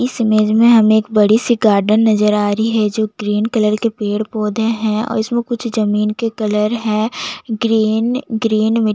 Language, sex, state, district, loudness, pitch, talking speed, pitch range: Hindi, female, Chhattisgarh, Jashpur, -15 LUFS, 220 Hz, 210 wpm, 215-225 Hz